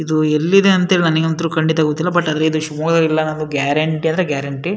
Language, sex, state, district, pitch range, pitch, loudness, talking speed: Kannada, male, Karnataka, Shimoga, 155-165 Hz, 160 Hz, -16 LUFS, 165 wpm